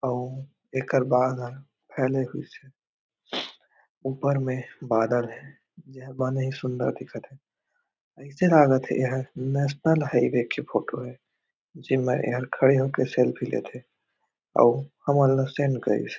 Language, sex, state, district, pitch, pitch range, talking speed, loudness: Chhattisgarhi, male, Chhattisgarh, Raigarh, 130 Hz, 130-140 Hz, 150 wpm, -25 LUFS